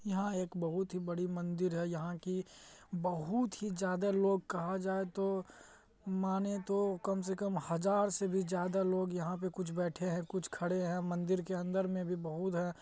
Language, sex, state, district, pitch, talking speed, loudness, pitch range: Hindi, male, Bihar, Madhepura, 185 Hz, 190 wpm, -36 LUFS, 175-195 Hz